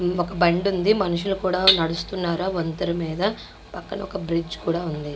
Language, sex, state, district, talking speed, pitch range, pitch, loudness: Telugu, female, Andhra Pradesh, Guntur, 165 wpm, 170-190 Hz, 180 Hz, -23 LUFS